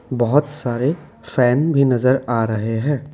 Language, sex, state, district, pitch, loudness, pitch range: Hindi, male, Assam, Kamrup Metropolitan, 130 Hz, -18 LUFS, 120-145 Hz